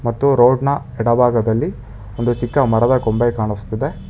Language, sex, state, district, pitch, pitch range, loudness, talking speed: Kannada, male, Karnataka, Bangalore, 120 Hz, 110-125 Hz, -17 LUFS, 130 wpm